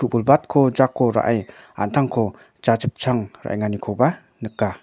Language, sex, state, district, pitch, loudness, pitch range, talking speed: Garo, male, Meghalaya, North Garo Hills, 115 Hz, -20 LUFS, 105-130 Hz, 75 wpm